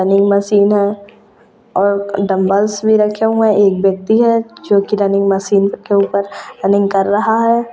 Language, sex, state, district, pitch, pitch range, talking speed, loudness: Hindi, female, Rajasthan, Churu, 200 Hz, 200-215 Hz, 165 wpm, -14 LUFS